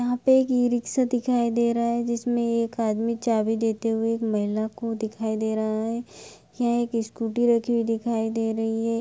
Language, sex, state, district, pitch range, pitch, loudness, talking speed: Hindi, female, Bihar, Begusarai, 225-235 Hz, 230 Hz, -25 LUFS, 200 wpm